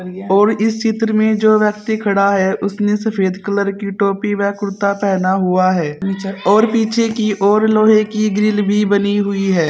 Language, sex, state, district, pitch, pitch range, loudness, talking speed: Hindi, female, Uttar Pradesh, Saharanpur, 205 Hz, 195-215 Hz, -15 LUFS, 180 wpm